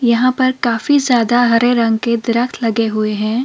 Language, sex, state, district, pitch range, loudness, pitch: Hindi, female, Delhi, New Delhi, 230-245 Hz, -15 LUFS, 235 Hz